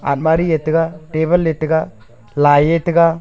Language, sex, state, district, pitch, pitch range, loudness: Wancho, male, Arunachal Pradesh, Longding, 160 Hz, 145-165 Hz, -15 LUFS